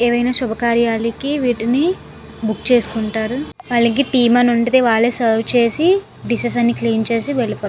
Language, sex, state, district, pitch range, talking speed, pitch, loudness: Telugu, female, Andhra Pradesh, Visakhapatnam, 230-250 Hz, 125 wpm, 235 Hz, -17 LUFS